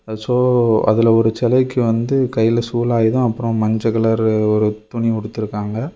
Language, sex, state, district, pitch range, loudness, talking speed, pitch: Tamil, male, Tamil Nadu, Kanyakumari, 110-120 Hz, -17 LUFS, 130 wpm, 115 Hz